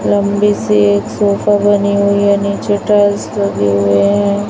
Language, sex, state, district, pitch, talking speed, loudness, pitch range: Hindi, female, Chhattisgarh, Raipur, 200 Hz, 160 wpm, -12 LUFS, 200-205 Hz